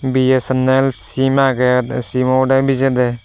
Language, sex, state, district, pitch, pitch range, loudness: Chakma, male, Tripura, Dhalai, 130 Hz, 125-135 Hz, -15 LUFS